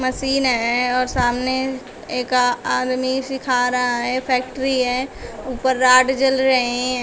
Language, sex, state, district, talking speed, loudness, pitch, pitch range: Hindi, female, Uttar Pradesh, Shamli, 135 wpm, -19 LUFS, 255 Hz, 250-260 Hz